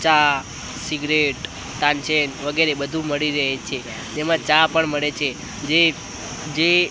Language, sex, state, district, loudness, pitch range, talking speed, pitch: Gujarati, male, Gujarat, Gandhinagar, -20 LUFS, 145-160 Hz, 130 wpm, 150 Hz